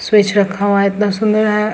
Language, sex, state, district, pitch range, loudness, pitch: Hindi, female, Bihar, Samastipur, 200-215 Hz, -14 LUFS, 210 Hz